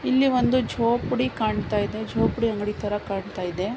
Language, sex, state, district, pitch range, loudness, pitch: Kannada, female, Karnataka, Mysore, 205-250 Hz, -24 LUFS, 225 Hz